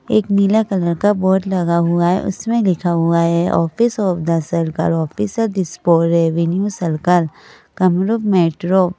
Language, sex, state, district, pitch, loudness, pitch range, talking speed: Hindi, female, Madhya Pradesh, Bhopal, 180 Hz, -16 LUFS, 170-195 Hz, 145 wpm